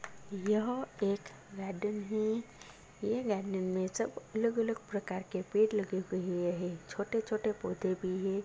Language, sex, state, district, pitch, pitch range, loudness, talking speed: Hindi, female, Bihar, Lakhisarai, 205 Hz, 190-215 Hz, -35 LUFS, 135 wpm